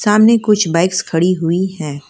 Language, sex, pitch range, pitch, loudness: Hindi, female, 165-210 Hz, 185 Hz, -14 LUFS